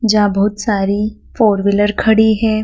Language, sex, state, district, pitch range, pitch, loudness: Hindi, female, Madhya Pradesh, Dhar, 205-220 Hz, 210 Hz, -14 LUFS